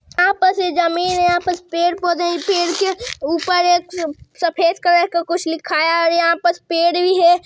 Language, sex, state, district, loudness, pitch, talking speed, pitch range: Hindi, male, Chhattisgarh, Sarguja, -17 LUFS, 350 Hz, 210 wpm, 335-360 Hz